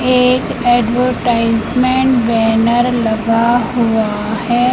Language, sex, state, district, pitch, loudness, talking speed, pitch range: Hindi, female, Madhya Pradesh, Katni, 240 Hz, -14 LUFS, 75 wpm, 225-250 Hz